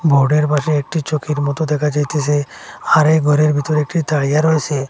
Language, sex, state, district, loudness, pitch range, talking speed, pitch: Bengali, male, Assam, Hailakandi, -16 LUFS, 145-155 Hz, 170 wpm, 150 Hz